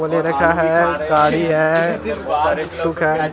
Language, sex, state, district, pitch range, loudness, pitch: Hindi, male, Delhi, New Delhi, 155-165 Hz, -17 LUFS, 165 Hz